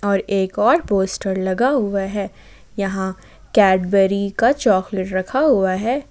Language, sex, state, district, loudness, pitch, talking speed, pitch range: Hindi, female, Jharkhand, Ranchi, -18 LUFS, 195 Hz, 135 wpm, 190-210 Hz